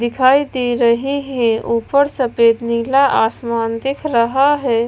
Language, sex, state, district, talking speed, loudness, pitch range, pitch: Hindi, female, Bihar, West Champaran, 135 wpm, -16 LUFS, 235-275 Hz, 240 Hz